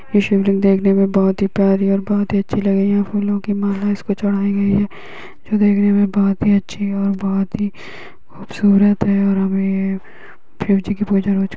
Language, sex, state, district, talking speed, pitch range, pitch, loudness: Hindi, female, Uttar Pradesh, Etah, 220 wpm, 195-205 Hz, 200 Hz, -17 LUFS